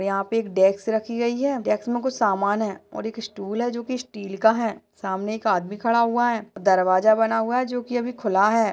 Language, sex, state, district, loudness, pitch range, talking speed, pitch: Hindi, female, Uttar Pradesh, Budaun, -23 LUFS, 200-235 Hz, 240 wpm, 220 Hz